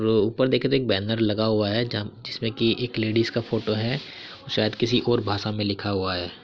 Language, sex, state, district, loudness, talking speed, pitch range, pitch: Hindi, male, Uttar Pradesh, Muzaffarnagar, -24 LUFS, 235 wpm, 105-120 Hz, 110 Hz